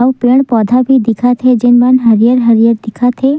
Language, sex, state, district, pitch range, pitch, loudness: Chhattisgarhi, female, Chhattisgarh, Sukma, 230-255 Hz, 245 Hz, -9 LUFS